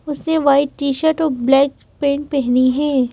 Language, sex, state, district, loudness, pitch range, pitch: Hindi, female, Madhya Pradesh, Bhopal, -17 LUFS, 270-295 Hz, 280 Hz